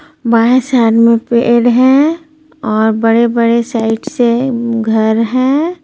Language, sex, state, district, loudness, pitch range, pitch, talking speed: Hindi, female, Jharkhand, Ranchi, -11 LUFS, 230-260 Hz, 235 Hz, 115 wpm